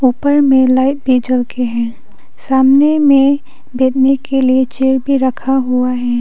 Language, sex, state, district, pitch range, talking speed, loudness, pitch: Hindi, female, Arunachal Pradesh, Papum Pare, 255-275 Hz, 165 wpm, -13 LUFS, 265 Hz